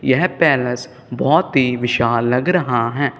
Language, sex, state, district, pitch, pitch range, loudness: Hindi, male, Punjab, Kapurthala, 125 Hz, 120-135 Hz, -17 LUFS